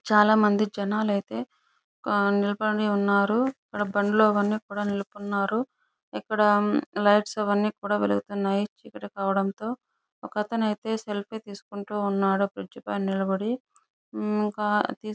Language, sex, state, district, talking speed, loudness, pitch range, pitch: Telugu, female, Andhra Pradesh, Chittoor, 115 wpm, -26 LUFS, 200-215 Hz, 205 Hz